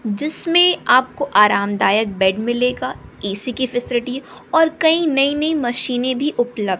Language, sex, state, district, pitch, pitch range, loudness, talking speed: Hindi, female, Bihar, West Champaran, 250 Hz, 215-295 Hz, -17 LUFS, 130 wpm